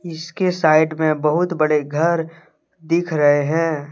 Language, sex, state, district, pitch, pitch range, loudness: Hindi, male, Jharkhand, Deoghar, 160 Hz, 155-170 Hz, -18 LUFS